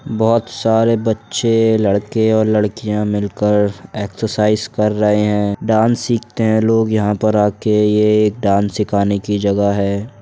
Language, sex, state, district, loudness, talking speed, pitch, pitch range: Hindi, male, Uttar Pradesh, Budaun, -16 LUFS, 155 wpm, 105 Hz, 105-110 Hz